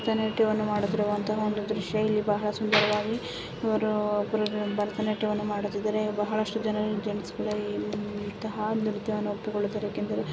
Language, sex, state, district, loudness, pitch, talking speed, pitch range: Kannada, female, Karnataka, Dharwad, -28 LUFS, 210 Hz, 100 wpm, 210-215 Hz